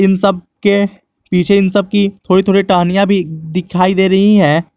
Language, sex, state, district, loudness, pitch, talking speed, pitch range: Hindi, male, Jharkhand, Garhwa, -13 LUFS, 195 Hz, 190 wpm, 180-200 Hz